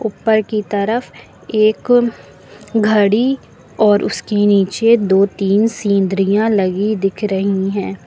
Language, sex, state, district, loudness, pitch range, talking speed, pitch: Hindi, female, Uttar Pradesh, Lucknow, -15 LUFS, 195-220 Hz, 120 wpm, 205 Hz